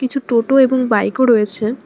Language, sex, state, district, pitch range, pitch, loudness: Bengali, female, West Bengal, Alipurduar, 220-260 Hz, 250 Hz, -14 LUFS